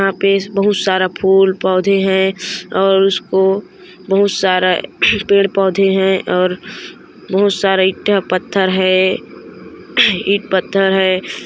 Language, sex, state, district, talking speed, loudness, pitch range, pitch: Chhattisgarhi, female, Chhattisgarh, Korba, 110 wpm, -14 LUFS, 185-195 Hz, 190 Hz